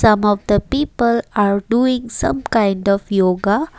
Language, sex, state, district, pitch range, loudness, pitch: English, female, Assam, Kamrup Metropolitan, 200-245 Hz, -17 LUFS, 210 Hz